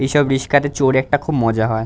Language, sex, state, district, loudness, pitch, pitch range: Bengali, male, West Bengal, Dakshin Dinajpur, -17 LUFS, 135 Hz, 120-145 Hz